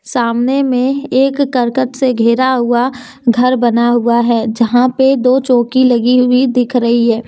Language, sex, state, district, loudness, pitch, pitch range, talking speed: Hindi, female, Jharkhand, Deoghar, -12 LUFS, 250 Hz, 235-260 Hz, 165 wpm